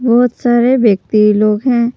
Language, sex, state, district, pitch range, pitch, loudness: Hindi, female, Jharkhand, Palamu, 215-245 Hz, 235 Hz, -12 LUFS